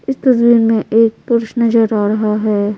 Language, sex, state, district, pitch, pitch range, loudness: Hindi, female, Bihar, Patna, 225 Hz, 215-235 Hz, -13 LUFS